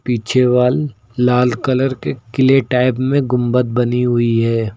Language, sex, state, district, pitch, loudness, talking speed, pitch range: Hindi, male, Uttar Pradesh, Lucknow, 125 Hz, -15 LUFS, 150 wpm, 120-130 Hz